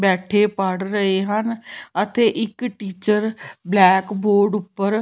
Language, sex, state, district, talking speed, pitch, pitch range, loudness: Punjabi, female, Punjab, Pathankot, 130 wpm, 205 Hz, 195-215 Hz, -19 LUFS